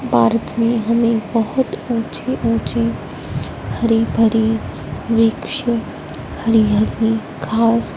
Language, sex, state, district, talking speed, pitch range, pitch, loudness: Hindi, female, Punjab, Fazilka, 90 wpm, 210-230 Hz, 225 Hz, -18 LUFS